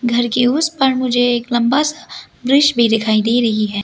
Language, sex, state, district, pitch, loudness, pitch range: Hindi, female, Arunachal Pradesh, Lower Dibang Valley, 240 Hz, -15 LUFS, 235-265 Hz